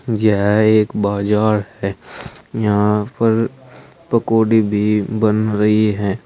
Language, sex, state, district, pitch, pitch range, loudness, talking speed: Hindi, male, Uttar Pradesh, Saharanpur, 110 Hz, 105-110 Hz, -16 LUFS, 105 wpm